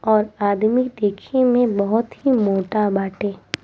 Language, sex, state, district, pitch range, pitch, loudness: Bhojpuri, female, Bihar, East Champaran, 200-245 Hz, 215 Hz, -19 LUFS